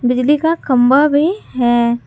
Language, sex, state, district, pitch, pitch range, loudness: Hindi, female, Jharkhand, Garhwa, 260 Hz, 245-300 Hz, -14 LUFS